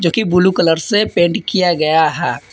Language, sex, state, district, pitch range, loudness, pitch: Hindi, male, Jharkhand, Palamu, 160-185 Hz, -14 LUFS, 175 Hz